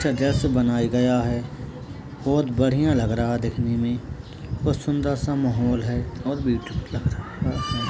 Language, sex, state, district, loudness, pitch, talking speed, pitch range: Hindi, male, Rajasthan, Churu, -24 LUFS, 125 Hz, 135 wpm, 120-140 Hz